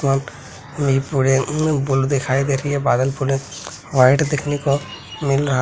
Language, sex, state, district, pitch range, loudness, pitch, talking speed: Hindi, male, Bihar, Begusarai, 135-145 Hz, -19 LUFS, 135 Hz, 180 wpm